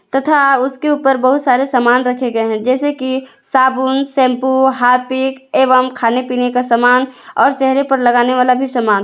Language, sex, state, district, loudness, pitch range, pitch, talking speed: Hindi, female, Jharkhand, Ranchi, -13 LUFS, 250-270 Hz, 260 Hz, 175 wpm